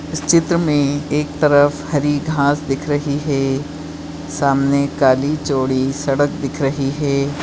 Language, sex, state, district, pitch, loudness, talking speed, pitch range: Hindi, female, Maharashtra, Nagpur, 145 Hz, -17 LUFS, 115 wpm, 140-150 Hz